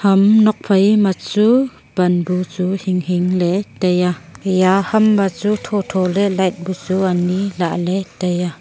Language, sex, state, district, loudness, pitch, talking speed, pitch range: Wancho, female, Arunachal Pradesh, Longding, -16 LUFS, 185 Hz, 190 wpm, 180-200 Hz